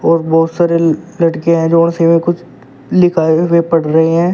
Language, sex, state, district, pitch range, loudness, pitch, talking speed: Hindi, male, Uttar Pradesh, Shamli, 160-170 Hz, -12 LUFS, 165 Hz, 180 wpm